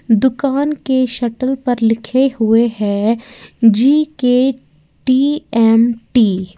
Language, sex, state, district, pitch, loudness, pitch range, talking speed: Hindi, female, Uttar Pradesh, Lalitpur, 240 Hz, -15 LUFS, 225-265 Hz, 90 wpm